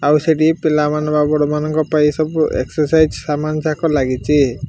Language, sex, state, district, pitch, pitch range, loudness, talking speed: Odia, male, Odisha, Malkangiri, 150 Hz, 150-155 Hz, -16 LUFS, 130 wpm